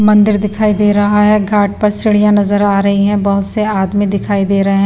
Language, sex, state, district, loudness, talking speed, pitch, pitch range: Hindi, female, Bihar, Patna, -12 LUFS, 235 wpm, 205 Hz, 200-210 Hz